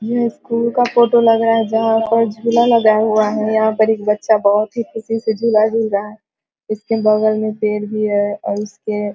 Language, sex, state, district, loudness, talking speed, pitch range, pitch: Hindi, female, Bihar, Vaishali, -16 LUFS, 230 wpm, 215-225 Hz, 220 Hz